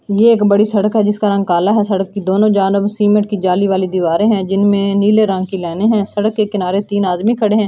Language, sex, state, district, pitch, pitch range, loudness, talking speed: Hindi, female, Delhi, New Delhi, 205 Hz, 195-210 Hz, -14 LUFS, 240 wpm